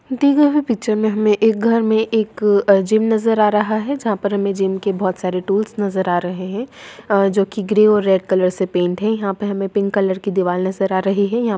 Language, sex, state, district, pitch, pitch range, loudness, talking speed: Hindi, female, Bihar, Saharsa, 205 Hz, 195-220 Hz, -17 LUFS, 270 wpm